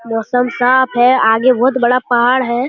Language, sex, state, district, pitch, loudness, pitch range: Hindi, male, Bihar, Jamui, 245 Hz, -13 LUFS, 240-255 Hz